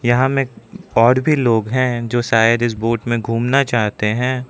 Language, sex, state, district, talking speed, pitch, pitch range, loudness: Hindi, male, Arunachal Pradesh, Lower Dibang Valley, 185 wpm, 120 Hz, 115-130 Hz, -17 LUFS